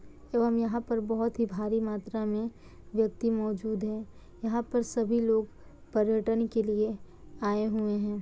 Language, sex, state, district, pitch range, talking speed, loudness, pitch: Hindi, female, Bihar, Kishanganj, 215-230 Hz, 155 wpm, -30 LUFS, 220 Hz